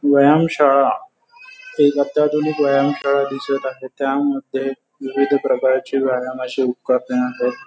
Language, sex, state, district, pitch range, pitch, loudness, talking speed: Marathi, male, Maharashtra, Pune, 130-145 Hz, 140 Hz, -18 LUFS, 95 wpm